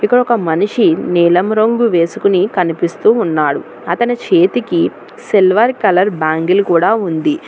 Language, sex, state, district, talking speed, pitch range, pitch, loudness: Telugu, female, Telangana, Hyderabad, 120 wpm, 175-240 Hz, 205 Hz, -13 LUFS